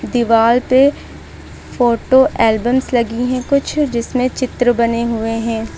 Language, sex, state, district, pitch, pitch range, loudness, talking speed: Hindi, female, Uttar Pradesh, Lucknow, 245 Hz, 230-255 Hz, -15 LUFS, 115 wpm